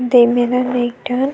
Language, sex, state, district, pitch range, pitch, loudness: Chhattisgarhi, female, Chhattisgarh, Sukma, 245-250 Hz, 250 Hz, -16 LUFS